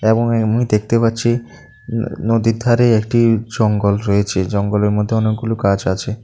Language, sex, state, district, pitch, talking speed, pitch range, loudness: Bengali, male, Tripura, South Tripura, 110 Hz, 135 wpm, 105-115 Hz, -16 LUFS